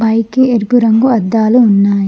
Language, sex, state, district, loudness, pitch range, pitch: Telugu, female, Telangana, Mahabubabad, -10 LUFS, 215-245 Hz, 225 Hz